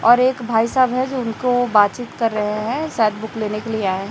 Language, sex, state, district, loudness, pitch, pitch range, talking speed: Hindi, female, Chhattisgarh, Raipur, -19 LUFS, 225 Hz, 215-245 Hz, 280 wpm